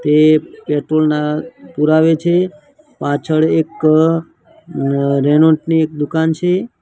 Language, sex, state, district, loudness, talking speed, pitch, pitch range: Gujarati, male, Gujarat, Gandhinagar, -15 LUFS, 95 wpm, 155 Hz, 150-165 Hz